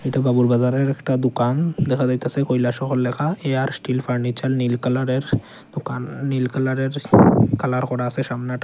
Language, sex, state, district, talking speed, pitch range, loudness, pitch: Bengali, male, Tripura, Unakoti, 155 wpm, 125-135 Hz, -20 LUFS, 130 Hz